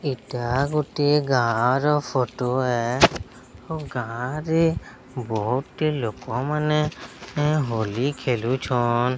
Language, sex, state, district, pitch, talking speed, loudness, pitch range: Odia, male, Odisha, Sambalpur, 130 Hz, 85 wpm, -23 LUFS, 125-150 Hz